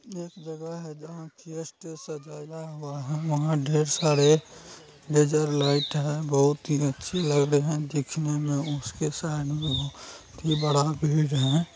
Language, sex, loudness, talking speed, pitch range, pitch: Maithili, male, -26 LUFS, 160 wpm, 145-160 Hz, 150 Hz